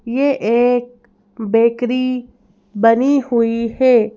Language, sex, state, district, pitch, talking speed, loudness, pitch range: Hindi, female, Madhya Pradesh, Bhopal, 235 Hz, 85 wpm, -16 LUFS, 230-250 Hz